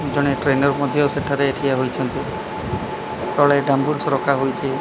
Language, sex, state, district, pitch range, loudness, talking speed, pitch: Odia, male, Odisha, Malkangiri, 135-145 Hz, -20 LUFS, 110 wpm, 140 Hz